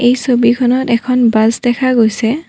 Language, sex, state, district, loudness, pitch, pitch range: Assamese, female, Assam, Kamrup Metropolitan, -12 LUFS, 245 Hz, 230-255 Hz